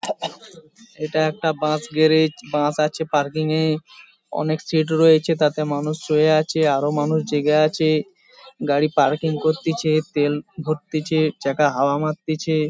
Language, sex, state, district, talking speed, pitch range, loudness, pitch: Bengali, male, West Bengal, Paschim Medinipur, 130 wpm, 150-160 Hz, -20 LUFS, 155 Hz